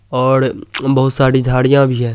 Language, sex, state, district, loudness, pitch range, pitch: Hindi, male, Bihar, Supaul, -14 LUFS, 125-135 Hz, 130 Hz